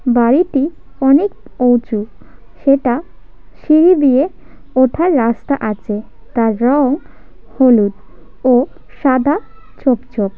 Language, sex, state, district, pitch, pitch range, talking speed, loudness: Bengali, female, West Bengal, Paschim Medinipur, 260 Hz, 235-285 Hz, 90 wpm, -14 LUFS